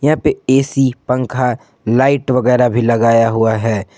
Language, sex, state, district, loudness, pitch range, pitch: Hindi, male, Jharkhand, Ranchi, -14 LUFS, 115-135 Hz, 125 Hz